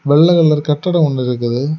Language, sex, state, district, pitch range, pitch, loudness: Tamil, male, Tamil Nadu, Kanyakumari, 130-160 Hz, 150 Hz, -14 LUFS